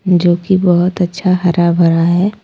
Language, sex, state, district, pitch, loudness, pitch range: Hindi, female, Jharkhand, Deoghar, 180 Hz, -12 LUFS, 175-185 Hz